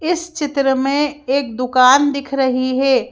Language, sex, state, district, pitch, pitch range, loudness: Hindi, female, Madhya Pradesh, Bhopal, 275 Hz, 255-290 Hz, -16 LUFS